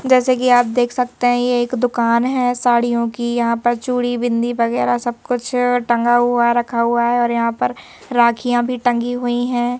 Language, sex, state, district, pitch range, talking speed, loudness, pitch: Hindi, female, Madhya Pradesh, Bhopal, 235-245 Hz, 200 wpm, -17 LUFS, 240 Hz